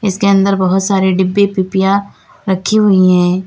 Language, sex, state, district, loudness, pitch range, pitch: Hindi, female, Uttar Pradesh, Lalitpur, -12 LUFS, 185-200 Hz, 190 Hz